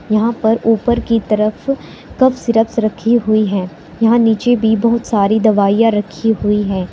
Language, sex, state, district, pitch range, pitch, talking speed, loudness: Hindi, female, Uttar Pradesh, Saharanpur, 210-230 Hz, 220 Hz, 165 wpm, -14 LUFS